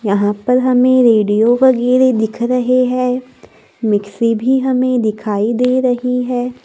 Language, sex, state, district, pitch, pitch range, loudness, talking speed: Hindi, female, Maharashtra, Gondia, 250 Hz, 220-255 Hz, -14 LUFS, 135 wpm